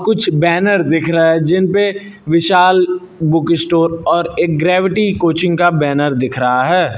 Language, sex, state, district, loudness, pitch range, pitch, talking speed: Hindi, male, Uttar Pradesh, Lucknow, -13 LUFS, 165-185 Hz, 170 Hz, 155 wpm